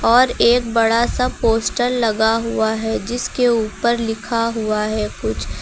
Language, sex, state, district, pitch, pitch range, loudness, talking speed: Hindi, female, Uttar Pradesh, Lucknow, 230 Hz, 220-240 Hz, -18 LUFS, 150 wpm